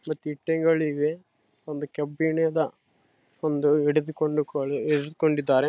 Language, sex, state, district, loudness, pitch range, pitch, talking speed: Kannada, male, Karnataka, Raichur, -26 LUFS, 145-160 Hz, 150 Hz, 75 wpm